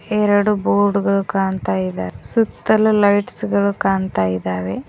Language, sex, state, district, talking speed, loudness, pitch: Kannada, female, Karnataka, Koppal, 125 wpm, -18 LUFS, 200 Hz